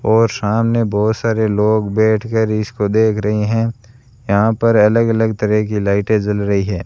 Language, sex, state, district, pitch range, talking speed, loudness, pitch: Hindi, male, Rajasthan, Bikaner, 105-115 Hz, 185 wpm, -16 LUFS, 110 Hz